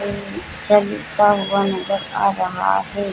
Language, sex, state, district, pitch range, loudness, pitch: Hindi, female, Jharkhand, Jamtara, 185-205 Hz, -18 LUFS, 200 Hz